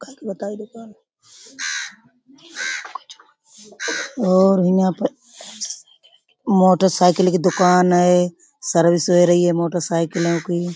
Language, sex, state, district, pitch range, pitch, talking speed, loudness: Hindi, female, Uttar Pradesh, Budaun, 175-235 Hz, 185 Hz, 80 wpm, -18 LUFS